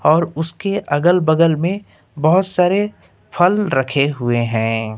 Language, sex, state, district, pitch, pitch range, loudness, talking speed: Hindi, male, Uttar Pradesh, Lucknow, 160 Hz, 135-180 Hz, -17 LUFS, 130 wpm